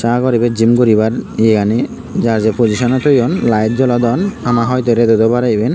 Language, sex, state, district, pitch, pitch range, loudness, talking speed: Chakma, male, Tripura, Unakoti, 120 Hz, 110-125 Hz, -13 LUFS, 155 wpm